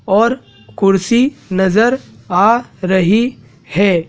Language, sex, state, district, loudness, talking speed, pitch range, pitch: Hindi, male, Madhya Pradesh, Dhar, -14 LUFS, 90 wpm, 185-235 Hz, 200 Hz